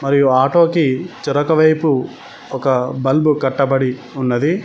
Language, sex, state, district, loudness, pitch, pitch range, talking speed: Telugu, male, Telangana, Mahabubabad, -16 LUFS, 140 Hz, 130-155 Hz, 115 wpm